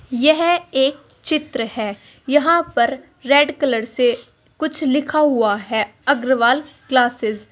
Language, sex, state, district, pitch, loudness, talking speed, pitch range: Hindi, female, Uttar Pradesh, Saharanpur, 270 Hz, -18 LUFS, 130 wpm, 240-300 Hz